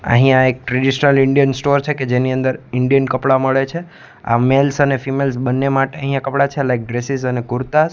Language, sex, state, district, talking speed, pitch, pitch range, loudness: Gujarati, male, Gujarat, Gandhinagar, 195 wpm, 135 Hz, 130-140 Hz, -16 LUFS